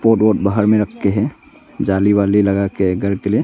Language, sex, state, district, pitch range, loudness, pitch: Hindi, male, Arunachal Pradesh, Longding, 100-105 Hz, -16 LUFS, 100 Hz